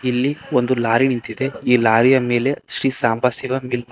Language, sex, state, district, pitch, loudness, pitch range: Kannada, male, Karnataka, Koppal, 125 Hz, -18 LUFS, 120-135 Hz